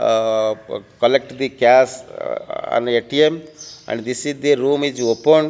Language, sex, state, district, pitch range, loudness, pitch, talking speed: English, male, Odisha, Malkangiri, 120-155 Hz, -18 LUFS, 140 Hz, 140 wpm